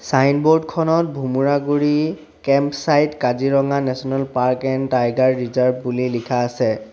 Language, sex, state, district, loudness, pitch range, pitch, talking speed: Assamese, male, Assam, Sonitpur, -19 LUFS, 125-145 Hz, 135 Hz, 120 wpm